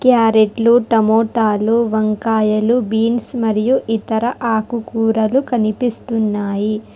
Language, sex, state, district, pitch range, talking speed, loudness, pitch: Telugu, female, Telangana, Hyderabad, 215-235 Hz, 70 wpm, -16 LUFS, 225 Hz